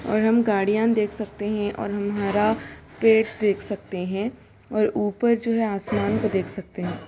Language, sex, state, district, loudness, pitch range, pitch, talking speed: Hindi, female, Bihar, Gopalganj, -23 LUFS, 205-220 Hz, 210 Hz, 180 wpm